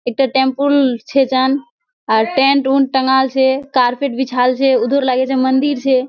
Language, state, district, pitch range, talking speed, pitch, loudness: Surjapuri, Bihar, Kishanganj, 260-275 Hz, 165 wpm, 265 Hz, -15 LUFS